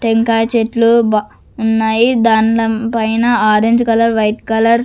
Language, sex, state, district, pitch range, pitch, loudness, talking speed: Telugu, female, Andhra Pradesh, Sri Satya Sai, 220-230 Hz, 225 Hz, -13 LUFS, 135 wpm